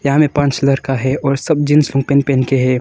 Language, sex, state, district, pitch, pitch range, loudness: Hindi, male, Arunachal Pradesh, Longding, 140 Hz, 135-145 Hz, -14 LUFS